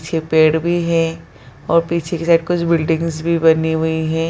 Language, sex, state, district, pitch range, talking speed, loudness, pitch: Hindi, female, Bihar, Jahanabad, 160-170 Hz, 210 wpm, -16 LUFS, 165 Hz